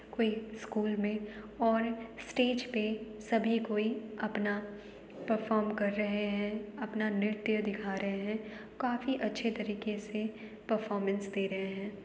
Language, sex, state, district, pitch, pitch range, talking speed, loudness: Hindi, female, Uttar Pradesh, Jalaun, 215 Hz, 205-220 Hz, 130 wpm, -34 LUFS